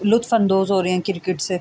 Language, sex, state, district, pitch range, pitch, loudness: Urdu, female, Andhra Pradesh, Anantapur, 180-205 Hz, 190 Hz, -19 LUFS